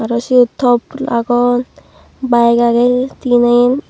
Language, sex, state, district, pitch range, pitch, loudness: Chakma, female, Tripura, Dhalai, 235-250 Hz, 245 Hz, -13 LUFS